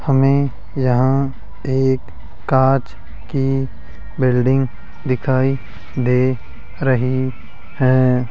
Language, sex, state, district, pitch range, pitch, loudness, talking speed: Hindi, male, Rajasthan, Jaipur, 110-135 Hz, 130 Hz, -18 LUFS, 70 wpm